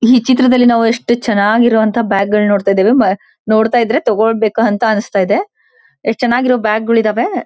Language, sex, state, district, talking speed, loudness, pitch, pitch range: Kannada, female, Karnataka, Belgaum, 160 wpm, -12 LUFS, 225 Hz, 215-245 Hz